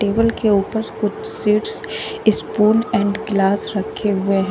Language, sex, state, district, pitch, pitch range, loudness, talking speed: Hindi, female, Uttar Pradesh, Shamli, 210 Hz, 200-220 Hz, -19 LUFS, 145 wpm